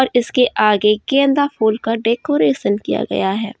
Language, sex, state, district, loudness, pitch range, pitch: Hindi, female, Jharkhand, Deoghar, -16 LUFS, 210-260 Hz, 225 Hz